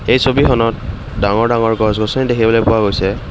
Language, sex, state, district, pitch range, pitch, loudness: Assamese, male, Assam, Kamrup Metropolitan, 110-120 Hz, 115 Hz, -14 LUFS